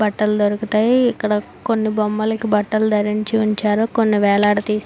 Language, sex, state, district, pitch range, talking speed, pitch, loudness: Telugu, female, Andhra Pradesh, Anantapur, 210-220 Hz, 125 wpm, 215 Hz, -18 LUFS